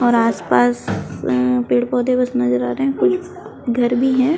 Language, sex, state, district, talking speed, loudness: Hindi, female, Chhattisgarh, Kabirdham, 180 wpm, -18 LUFS